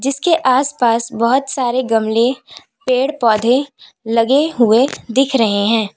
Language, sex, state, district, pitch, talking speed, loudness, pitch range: Hindi, female, Uttar Pradesh, Lalitpur, 250 Hz, 120 wpm, -15 LUFS, 230-270 Hz